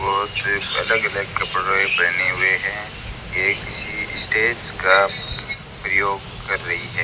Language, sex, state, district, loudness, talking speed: Hindi, male, Rajasthan, Bikaner, -20 LUFS, 135 wpm